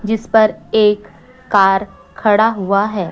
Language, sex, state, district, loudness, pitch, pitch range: Hindi, female, Chhattisgarh, Raipur, -15 LUFS, 210 Hz, 200-220 Hz